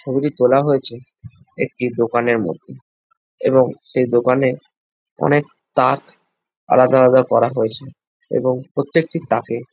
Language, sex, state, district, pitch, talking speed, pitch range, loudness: Bengali, male, West Bengal, Jalpaiguri, 130 Hz, 110 wpm, 120-145 Hz, -17 LUFS